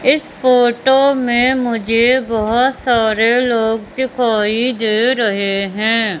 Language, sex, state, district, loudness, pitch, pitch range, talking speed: Hindi, female, Madhya Pradesh, Katni, -14 LUFS, 235 Hz, 220-255 Hz, 105 wpm